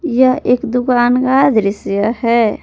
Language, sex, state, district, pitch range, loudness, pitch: Hindi, female, Jharkhand, Palamu, 225-255 Hz, -14 LUFS, 250 Hz